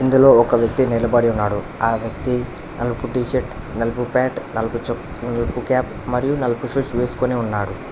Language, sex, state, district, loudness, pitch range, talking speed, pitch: Telugu, male, Telangana, Hyderabad, -20 LUFS, 115-125 Hz, 145 wpm, 120 Hz